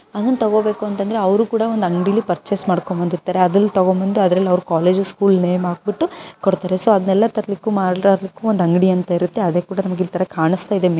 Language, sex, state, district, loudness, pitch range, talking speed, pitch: Kannada, female, Karnataka, Bijapur, -17 LUFS, 180-210 Hz, 170 wpm, 190 Hz